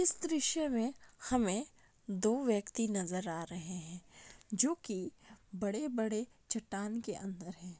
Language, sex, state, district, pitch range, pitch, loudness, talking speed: Hindi, female, Jharkhand, Jamtara, 185-245 Hz, 215 Hz, -36 LUFS, 130 wpm